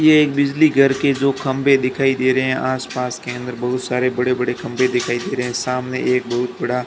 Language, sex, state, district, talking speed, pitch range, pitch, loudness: Hindi, male, Rajasthan, Barmer, 235 wpm, 125-135 Hz, 130 Hz, -18 LUFS